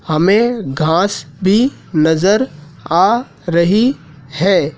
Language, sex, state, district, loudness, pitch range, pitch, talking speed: Hindi, male, Madhya Pradesh, Dhar, -14 LUFS, 155-215 Hz, 180 Hz, 90 wpm